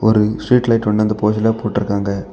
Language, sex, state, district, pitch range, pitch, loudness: Tamil, male, Tamil Nadu, Kanyakumari, 105-110 Hz, 105 Hz, -16 LUFS